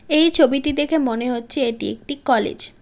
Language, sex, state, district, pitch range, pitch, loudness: Bengali, female, West Bengal, Cooch Behar, 235-295 Hz, 275 Hz, -18 LUFS